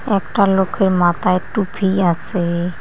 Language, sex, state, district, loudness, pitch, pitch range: Bengali, female, West Bengal, Cooch Behar, -17 LUFS, 190 Hz, 175-195 Hz